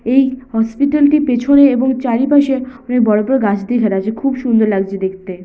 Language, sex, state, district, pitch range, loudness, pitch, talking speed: Bengali, female, West Bengal, Purulia, 215-270 Hz, -14 LUFS, 250 Hz, 200 wpm